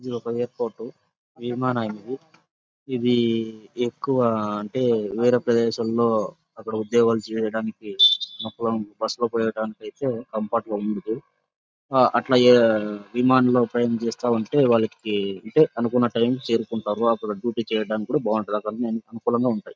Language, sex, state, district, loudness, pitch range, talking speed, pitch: Telugu, male, Andhra Pradesh, Anantapur, -23 LUFS, 110-120 Hz, 120 wpm, 115 Hz